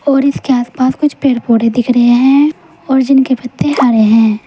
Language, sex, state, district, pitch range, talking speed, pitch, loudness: Hindi, female, Uttar Pradesh, Saharanpur, 235-270 Hz, 190 wpm, 250 Hz, -11 LUFS